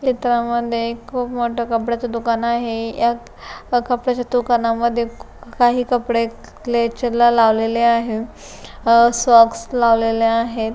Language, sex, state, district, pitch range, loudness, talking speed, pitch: Marathi, female, Maharashtra, Pune, 230-245 Hz, -18 LUFS, 105 wpm, 235 Hz